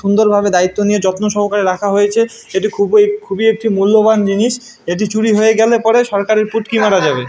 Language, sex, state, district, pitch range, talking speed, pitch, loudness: Bengali, male, West Bengal, Malda, 200-225 Hz, 190 wpm, 215 Hz, -13 LUFS